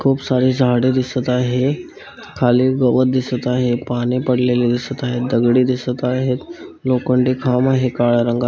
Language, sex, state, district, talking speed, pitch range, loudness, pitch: Marathi, male, Maharashtra, Chandrapur, 150 wpm, 125-130 Hz, -17 LUFS, 125 Hz